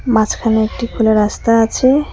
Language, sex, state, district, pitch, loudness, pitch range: Bengali, female, West Bengal, Cooch Behar, 225 Hz, -14 LUFS, 220-235 Hz